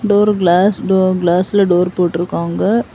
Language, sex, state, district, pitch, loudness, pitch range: Tamil, female, Tamil Nadu, Kanyakumari, 180 Hz, -14 LUFS, 175-195 Hz